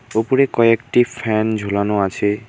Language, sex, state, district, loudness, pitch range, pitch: Bengali, male, West Bengal, Alipurduar, -17 LUFS, 105-115 Hz, 110 Hz